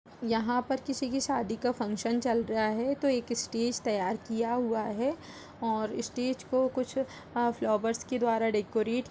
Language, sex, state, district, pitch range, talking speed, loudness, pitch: Hindi, female, Uttar Pradesh, Budaun, 225-255 Hz, 170 wpm, -31 LUFS, 235 Hz